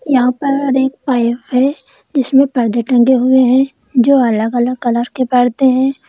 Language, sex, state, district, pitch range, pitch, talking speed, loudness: Hindi, female, Uttar Pradesh, Lalitpur, 245-270 Hz, 255 Hz, 165 wpm, -13 LUFS